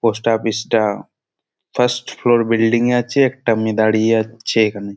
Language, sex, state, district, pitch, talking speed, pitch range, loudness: Bengali, male, West Bengal, Jalpaiguri, 115 Hz, 155 wpm, 110-120 Hz, -17 LUFS